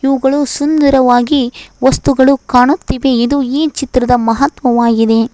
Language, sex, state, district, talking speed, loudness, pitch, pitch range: Kannada, female, Karnataka, Koppal, 90 wpm, -12 LUFS, 265 Hz, 245-280 Hz